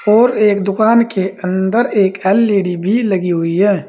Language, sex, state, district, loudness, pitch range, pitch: Hindi, male, Uttar Pradesh, Saharanpur, -14 LUFS, 190-220 Hz, 200 Hz